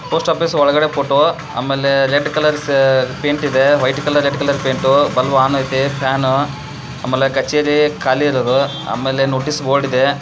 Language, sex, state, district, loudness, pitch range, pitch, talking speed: Kannada, male, Karnataka, Belgaum, -15 LUFS, 135-145 Hz, 140 Hz, 155 wpm